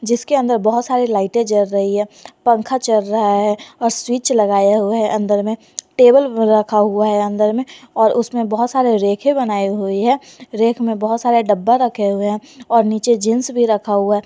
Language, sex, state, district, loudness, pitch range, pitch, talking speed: Hindi, female, Jharkhand, Garhwa, -16 LUFS, 210-240 Hz, 225 Hz, 200 wpm